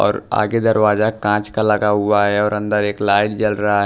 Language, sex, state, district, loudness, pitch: Hindi, male, Maharashtra, Washim, -17 LUFS, 105 Hz